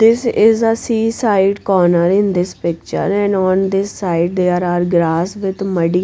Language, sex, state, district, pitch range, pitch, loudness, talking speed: English, female, Punjab, Pathankot, 175-205 Hz, 190 Hz, -15 LUFS, 170 wpm